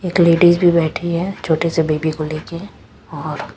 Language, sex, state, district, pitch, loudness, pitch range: Hindi, female, Chhattisgarh, Raipur, 170 Hz, -17 LUFS, 160-175 Hz